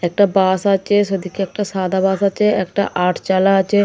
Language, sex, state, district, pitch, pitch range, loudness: Bengali, female, West Bengal, Dakshin Dinajpur, 195 Hz, 185-200 Hz, -17 LUFS